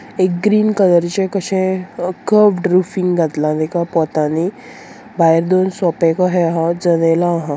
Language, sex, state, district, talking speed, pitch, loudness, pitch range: Konkani, female, Goa, North and South Goa, 145 wpm, 180 Hz, -15 LUFS, 165-190 Hz